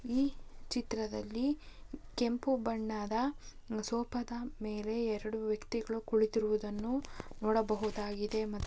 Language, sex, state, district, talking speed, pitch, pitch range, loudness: Kannada, female, Karnataka, Bijapur, 75 wpm, 225 Hz, 215-240 Hz, -36 LUFS